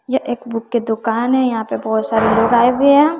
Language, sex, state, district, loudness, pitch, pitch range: Hindi, female, Bihar, West Champaran, -16 LUFS, 235 Hz, 225-260 Hz